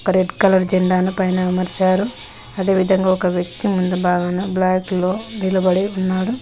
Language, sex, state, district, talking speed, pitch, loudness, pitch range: Telugu, female, Telangana, Mahabubabad, 150 wpm, 185 Hz, -18 LUFS, 185-190 Hz